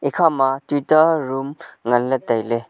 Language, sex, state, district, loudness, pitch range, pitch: Wancho, male, Arunachal Pradesh, Longding, -19 LUFS, 125-155 Hz, 135 Hz